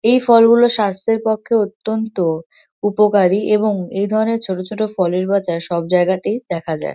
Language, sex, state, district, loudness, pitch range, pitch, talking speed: Bengali, female, West Bengal, North 24 Parganas, -17 LUFS, 185-220 Hz, 205 Hz, 145 wpm